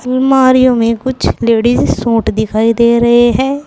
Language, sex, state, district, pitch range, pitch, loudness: Hindi, female, Uttar Pradesh, Saharanpur, 230-255 Hz, 240 Hz, -11 LUFS